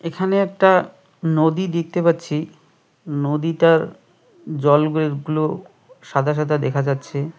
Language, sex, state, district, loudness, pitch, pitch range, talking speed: Bengali, male, West Bengal, Cooch Behar, -19 LUFS, 160 Hz, 150-170 Hz, 105 wpm